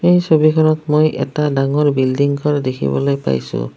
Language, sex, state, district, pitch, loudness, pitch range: Assamese, female, Assam, Kamrup Metropolitan, 140 Hz, -16 LUFS, 125-155 Hz